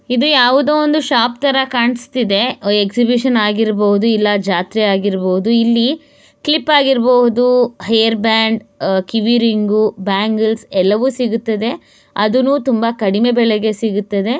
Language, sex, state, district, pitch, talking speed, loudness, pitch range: Kannada, female, Karnataka, Bellary, 230 Hz, 110 wpm, -14 LUFS, 210-250 Hz